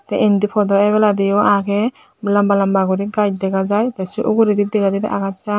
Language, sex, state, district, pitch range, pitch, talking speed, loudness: Chakma, male, Tripura, Unakoti, 195-210 Hz, 205 Hz, 205 wpm, -16 LUFS